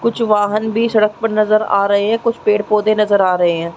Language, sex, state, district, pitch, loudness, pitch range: Hindi, female, Chhattisgarh, Raigarh, 215 Hz, -15 LUFS, 200-220 Hz